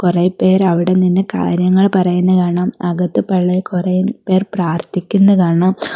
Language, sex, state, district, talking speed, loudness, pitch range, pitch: Malayalam, female, Kerala, Kollam, 100 wpm, -14 LUFS, 180-190 Hz, 185 Hz